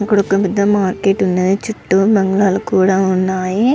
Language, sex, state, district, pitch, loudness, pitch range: Telugu, male, Andhra Pradesh, Visakhapatnam, 195 Hz, -15 LUFS, 190-200 Hz